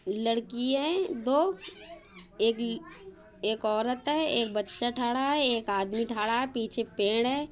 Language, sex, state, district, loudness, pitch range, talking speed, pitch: Bundeli, female, Uttar Pradesh, Budaun, -29 LUFS, 215-270 Hz, 145 wpm, 235 Hz